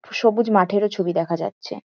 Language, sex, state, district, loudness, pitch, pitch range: Bengali, female, West Bengal, Kolkata, -21 LUFS, 200 Hz, 180-220 Hz